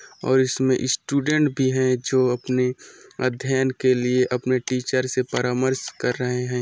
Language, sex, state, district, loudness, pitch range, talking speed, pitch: Hindi, male, Chhattisgarh, Korba, -22 LUFS, 125-130 Hz, 155 wpm, 130 Hz